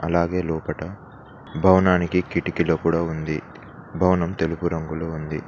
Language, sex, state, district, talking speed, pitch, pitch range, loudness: Telugu, male, Telangana, Mahabubabad, 110 wpm, 85 Hz, 80-90 Hz, -22 LUFS